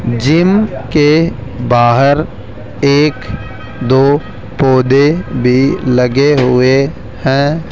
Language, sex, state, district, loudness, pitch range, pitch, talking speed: Hindi, male, Rajasthan, Jaipur, -11 LUFS, 125-145 Hz, 130 Hz, 80 wpm